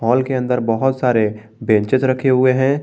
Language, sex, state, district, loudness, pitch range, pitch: Hindi, male, Jharkhand, Garhwa, -17 LUFS, 115-130 Hz, 130 Hz